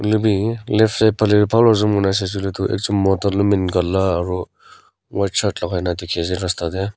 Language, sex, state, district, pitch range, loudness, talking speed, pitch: Nagamese, female, Nagaland, Kohima, 90-105 Hz, -18 LUFS, 190 wpm, 100 Hz